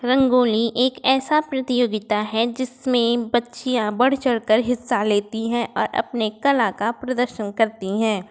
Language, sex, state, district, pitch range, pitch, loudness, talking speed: Hindi, female, Uttar Pradesh, Varanasi, 220-255 Hz, 240 Hz, -21 LUFS, 135 wpm